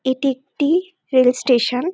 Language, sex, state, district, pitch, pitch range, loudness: Bengali, female, West Bengal, North 24 Parganas, 265 Hz, 250-335 Hz, -18 LUFS